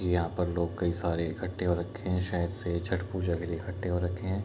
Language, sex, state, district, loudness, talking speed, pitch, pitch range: Hindi, male, Bihar, Kishanganj, -31 LUFS, 270 wpm, 90 Hz, 85-95 Hz